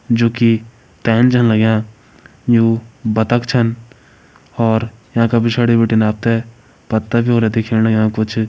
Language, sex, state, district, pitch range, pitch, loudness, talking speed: Garhwali, male, Uttarakhand, Uttarkashi, 110-120 Hz, 115 Hz, -15 LUFS, 125 wpm